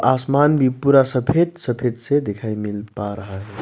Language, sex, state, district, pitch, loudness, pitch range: Hindi, male, Arunachal Pradesh, Lower Dibang Valley, 125 Hz, -19 LUFS, 105-140 Hz